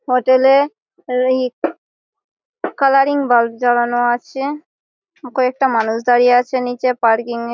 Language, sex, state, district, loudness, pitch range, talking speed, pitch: Bengali, female, West Bengal, Malda, -16 LUFS, 240-275 Hz, 105 wpm, 250 Hz